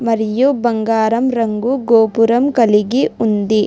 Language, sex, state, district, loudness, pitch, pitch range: Telugu, female, Telangana, Hyderabad, -14 LUFS, 225 Hz, 220-240 Hz